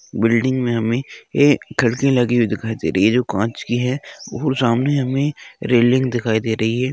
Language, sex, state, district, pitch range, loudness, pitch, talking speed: Hindi, male, Uttarakhand, Uttarkashi, 115-130 Hz, -18 LUFS, 120 Hz, 200 wpm